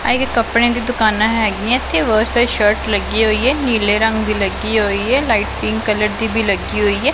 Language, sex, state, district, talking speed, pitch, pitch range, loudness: Punjabi, female, Punjab, Pathankot, 200 wpm, 220 Hz, 210-240 Hz, -15 LUFS